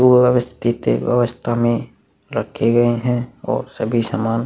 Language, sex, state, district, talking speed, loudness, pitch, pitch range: Hindi, male, Chhattisgarh, Korba, 135 wpm, -19 LUFS, 120 Hz, 115-125 Hz